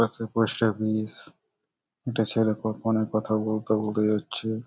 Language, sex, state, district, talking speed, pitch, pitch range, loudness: Bengali, male, West Bengal, Malda, 155 wpm, 110 Hz, 110-115 Hz, -27 LUFS